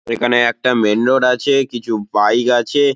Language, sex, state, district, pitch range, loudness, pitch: Bengali, male, West Bengal, Paschim Medinipur, 115-130 Hz, -15 LUFS, 120 Hz